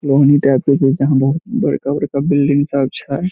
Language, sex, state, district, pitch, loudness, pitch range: Maithili, male, Bihar, Samastipur, 140 Hz, -15 LUFS, 140-145 Hz